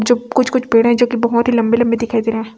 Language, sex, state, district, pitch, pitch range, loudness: Hindi, female, Chhattisgarh, Raipur, 235 Hz, 230-240 Hz, -15 LUFS